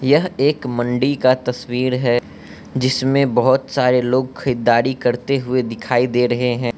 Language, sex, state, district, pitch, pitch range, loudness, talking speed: Hindi, male, Arunachal Pradesh, Lower Dibang Valley, 125 Hz, 120-130 Hz, -18 LUFS, 150 wpm